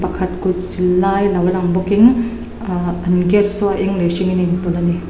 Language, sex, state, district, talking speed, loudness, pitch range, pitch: Mizo, female, Mizoram, Aizawl, 210 wpm, -16 LUFS, 180-195 Hz, 185 Hz